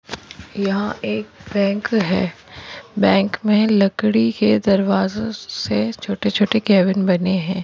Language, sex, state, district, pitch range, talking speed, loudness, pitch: Hindi, female, Rajasthan, Churu, 180-205 Hz, 120 wpm, -18 LUFS, 195 Hz